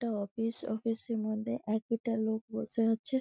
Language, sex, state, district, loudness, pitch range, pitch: Bengali, female, West Bengal, Malda, -34 LUFS, 220-230 Hz, 225 Hz